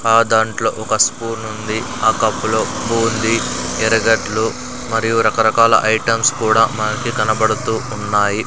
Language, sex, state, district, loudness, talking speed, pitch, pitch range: Telugu, male, Andhra Pradesh, Sri Satya Sai, -16 LUFS, 120 wpm, 110 Hz, 110-115 Hz